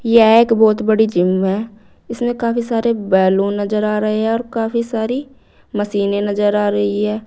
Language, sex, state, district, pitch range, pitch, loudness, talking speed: Hindi, female, Uttar Pradesh, Saharanpur, 205-230 Hz, 215 Hz, -16 LUFS, 180 wpm